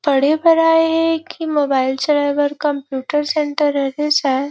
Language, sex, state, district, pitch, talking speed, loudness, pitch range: Chhattisgarhi, female, Chhattisgarh, Rajnandgaon, 295 Hz, 160 wpm, -17 LUFS, 280-310 Hz